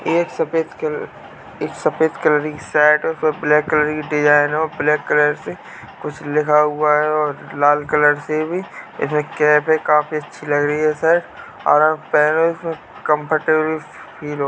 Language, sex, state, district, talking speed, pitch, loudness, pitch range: Hindi, male, Uttar Pradesh, Jalaun, 180 wpm, 150 Hz, -18 LUFS, 150-160 Hz